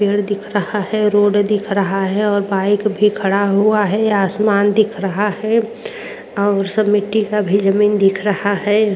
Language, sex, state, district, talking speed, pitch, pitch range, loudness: Hindi, female, Uttar Pradesh, Jyotiba Phule Nagar, 180 wpm, 205 Hz, 200-210 Hz, -16 LUFS